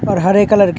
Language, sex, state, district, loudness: Hindi, male, Uttar Pradesh, Jalaun, -12 LUFS